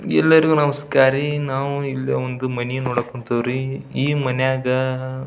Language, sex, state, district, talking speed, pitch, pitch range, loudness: Kannada, male, Karnataka, Belgaum, 135 wpm, 130 Hz, 125-140 Hz, -20 LUFS